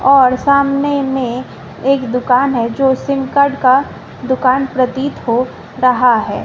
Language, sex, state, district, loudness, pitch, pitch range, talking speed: Hindi, female, Bihar, West Champaran, -14 LUFS, 260 Hz, 250-275 Hz, 140 wpm